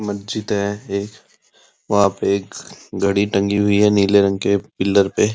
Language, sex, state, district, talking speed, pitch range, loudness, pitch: Hindi, male, Uttar Pradesh, Muzaffarnagar, 180 wpm, 100-105 Hz, -18 LUFS, 100 Hz